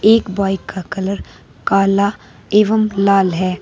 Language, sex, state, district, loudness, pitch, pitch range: Hindi, female, Uttar Pradesh, Saharanpur, -16 LUFS, 195 Hz, 195-205 Hz